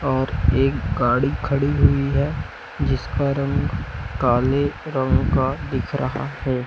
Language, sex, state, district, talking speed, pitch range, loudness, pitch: Hindi, male, Chhattisgarh, Raipur, 125 wpm, 120-140 Hz, -21 LUFS, 135 Hz